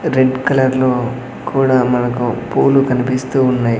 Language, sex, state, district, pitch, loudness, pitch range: Telugu, male, Andhra Pradesh, Sri Satya Sai, 130 Hz, -15 LUFS, 125-130 Hz